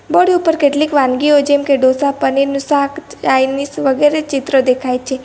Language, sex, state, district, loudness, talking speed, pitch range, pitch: Gujarati, female, Gujarat, Valsad, -14 LUFS, 150 wpm, 265-295 Hz, 280 Hz